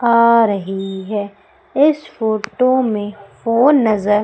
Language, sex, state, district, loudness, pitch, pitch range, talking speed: Hindi, female, Madhya Pradesh, Umaria, -16 LUFS, 220 Hz, 205-235 Hz, 115 wpm